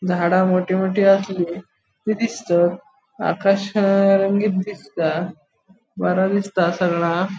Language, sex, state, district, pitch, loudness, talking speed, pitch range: Konkani, male, Goa, North and South Goa, 190 Hz, -19 LUFS, 95 wpm, 175-200 Hz